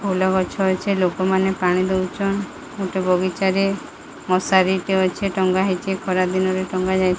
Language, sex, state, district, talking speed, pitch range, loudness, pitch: Odia, female, Odisha, Sambalpur, 125 wpm, 185-190 Hz, -20 LUFS, 190 Hz